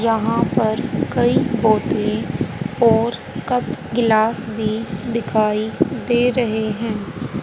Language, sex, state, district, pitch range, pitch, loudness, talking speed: Hindi, female, Haryana, Jhajjar, 220-235 Hz, 225 Hz, -19 LUFS, 95 wpm